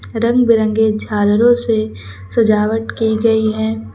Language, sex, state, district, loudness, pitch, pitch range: Hindi, female, Uttar Pradesh, Lucknow, -15 LUFS, 220 Hz, 210-225 Hz